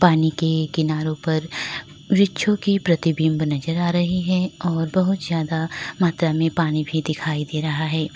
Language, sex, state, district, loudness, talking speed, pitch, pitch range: Hindi, female, Uttar Pradesh, Lalitpur, -21 LUFS, 160 wpm, 160 Hz, 155-175 Hz